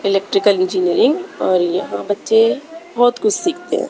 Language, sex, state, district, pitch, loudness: Hindi, female, Haryana, Rohtak, 245 Hz, -16 LUFS